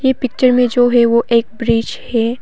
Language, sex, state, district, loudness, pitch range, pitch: Hindi, female, Arunachal Pradesh, Papum Pare, -14 LUFS, 230-250 Hz, 240 Hz